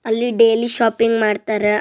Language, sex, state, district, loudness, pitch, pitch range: Kannada, male, Karnataka, Bijapur, -16 LUFS, 225 Hz, 215-230 Hz